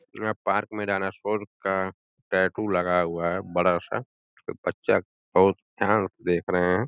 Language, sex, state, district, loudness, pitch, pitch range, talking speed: Hindi, male, Uttar Pradesh, Gorakhpur, -26 LUFS, 95 Hz, 90-105 Hz, 165 wpm